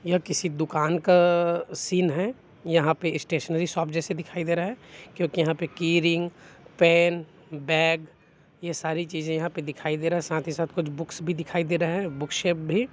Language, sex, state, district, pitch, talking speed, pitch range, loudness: Hindi, male, Chhattisgarh, Bilaspur, 170 Hz, 205 wpm, 160-175 Hz, -25 LUFS